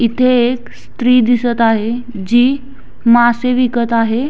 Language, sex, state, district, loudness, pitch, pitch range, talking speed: Marathi, female, Maharashtra, Sindhudurg, -13 LUFS, 240 Hz, 235-250 Hz, 125 wpm